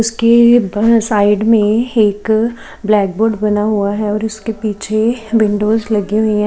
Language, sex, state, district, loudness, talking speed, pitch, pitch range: Hindi, female, Maharashtra, Gondia, -14 LUFS, 160 wpm, 215 Hz, 210-225 Hz